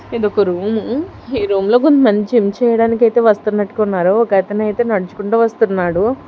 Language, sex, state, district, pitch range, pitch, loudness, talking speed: Telugu, female, Telangana, Hyderabad, 205-235 Hz, 215 Hz, -15 LUFS, 135 wpm